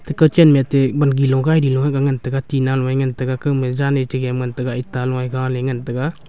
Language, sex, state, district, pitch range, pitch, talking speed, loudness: Wancho, male, Arunachal Pradesh, Longding, 130-140 Hz, 130 Hz, 200 wpm, -18 LUFS